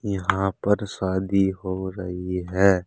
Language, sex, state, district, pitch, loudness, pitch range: Hindi, male, Uttar Pradesh, Saharanpur, 95 Hz, -24 LUFS, 95-100 Hz